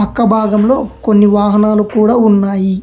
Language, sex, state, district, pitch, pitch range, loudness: Telugu, male, Telangana, Hyderabad, 210 Hz, 205-220 Hz, -11 LUFS